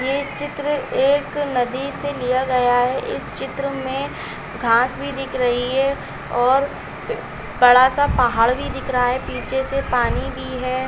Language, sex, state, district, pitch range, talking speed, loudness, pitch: Hindi, female, Chhattisgarh, Bilaspur, 250-275 Hz, 155 wpm, -20 LUFS, 260 Hz